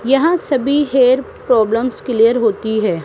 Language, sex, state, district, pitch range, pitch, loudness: Hindi, female, Rajasthan, Jaipur, 225-270 Hz, 250 Hz, -15 LUFS